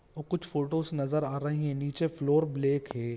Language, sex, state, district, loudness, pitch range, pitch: Hindi, male, Jharkhand, Jamtara, -30 LUFS, 140-155 Hz, 145 Hz